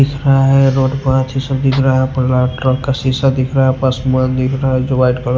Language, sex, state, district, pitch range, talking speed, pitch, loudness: Hindi, male, Punjab, Pathankot, 130-135 Hz, 270 wpm, 130 Hz, -14 LUFS